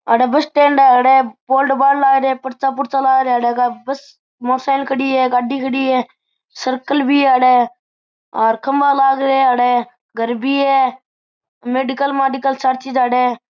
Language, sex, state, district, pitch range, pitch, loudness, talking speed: Marwari, male, Rajasthan, Churu, 250-275 Hz, 265 Hz, -15 LUFS, 160 wpm